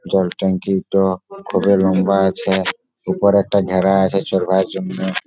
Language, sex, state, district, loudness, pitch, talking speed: Bengali, male, West Bengal, Malda, -17 LUFS, 95 Hz, 125 wpm